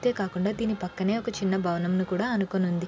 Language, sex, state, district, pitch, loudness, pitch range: Telugu, female, Andhra Pradesh, Srikakulam, 190 Hz, -28 LUFS, 180-215 Hz